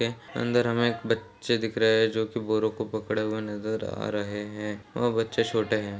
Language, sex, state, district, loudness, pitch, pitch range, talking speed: Hindi, male, Bihar, Jahanabad, -27 LUFS, 110 Hz, 105-115 Hz, 210 wpm